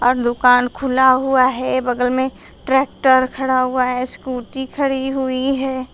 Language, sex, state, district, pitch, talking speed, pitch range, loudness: Hindi, female, Uttar Pradesh, Shamli, 260 Hz, 140 wpm, 250-265 Hz, -17 LUFS